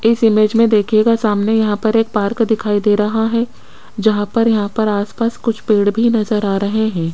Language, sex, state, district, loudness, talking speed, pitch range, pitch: Hindi, female, Rajasthan, Jaipur, -15 LUFS, 220 wpm, 210-225 Hz, 215 Hz